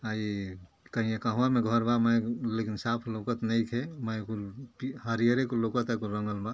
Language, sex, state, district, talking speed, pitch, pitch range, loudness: Bhojpuri, male, Uttar Pradesh, Ghazipur, 185 wpm, 115 Hz, 110-120 Hz, -30 LUFS